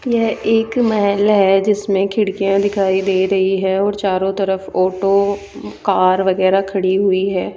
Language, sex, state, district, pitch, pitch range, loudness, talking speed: Hindi, female, Rajasthan, Jaipur, 195 Hz, 190-205 Hz, -16 LUFS, 150 wpm